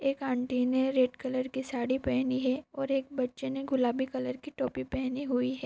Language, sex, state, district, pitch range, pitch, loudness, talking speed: Hindi, female, Maharashtra, Pune, 255-270 Hz, 260 Hz, -31 LUFS, 210 wpm